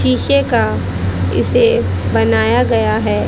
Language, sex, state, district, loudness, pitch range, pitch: Hindi, female, Haryana, Jhajjar, -14 LUFS, 90-110 Hz, 95 Hz